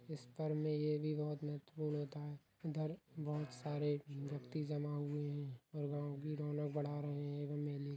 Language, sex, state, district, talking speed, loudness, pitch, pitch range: Hindi, male, Uttar Pradesh, Ghazipur, 195 wpm, -43 LUFS, 150 Hz, 145-150 Hz